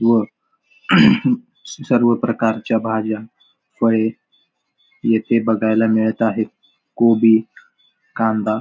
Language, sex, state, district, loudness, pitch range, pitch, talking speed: Marathi, male, Maharashtra, Pune, -17 LUFS, 110-115 Hz, 115 Hz, 85 wpm